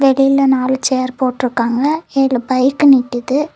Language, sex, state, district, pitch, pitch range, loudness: Tamil, female, Tamil Nadu, Kanyakumari, 265 Hz, 255-275 Hz, -14 LUFS